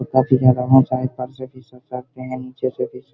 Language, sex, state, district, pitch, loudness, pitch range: Hindi, male, Bihar, Begusarai, 130 Hz, -19 LUFS, 125-130 Hz